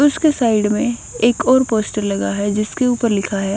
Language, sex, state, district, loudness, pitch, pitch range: Hindi, female, Punjab, Kapurthala, -17 LUFS, 225 Hz, 205-250 Hz